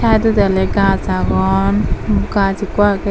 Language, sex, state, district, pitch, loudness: Chakma, female, Tripura, Dhalai, 195 Hz, -15 LUFS